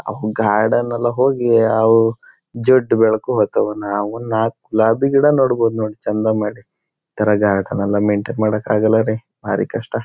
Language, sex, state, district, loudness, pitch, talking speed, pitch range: Kannada, male, Karnataka, Shimoga, -17 LUFS, 110 Hz, 150 wpm, 105-120 Hz